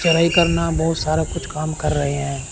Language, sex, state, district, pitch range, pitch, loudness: Hindi, male, Chandigarh, Chandigarh, 150-165 Hz, 155 Hz, -19 LUFS